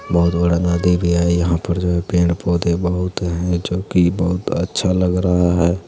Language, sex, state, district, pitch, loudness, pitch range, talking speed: Hindi, male, Bihar, Lakhisarai, 90 Hz, -18 LUFS, 85-90 Hz, 195 wpm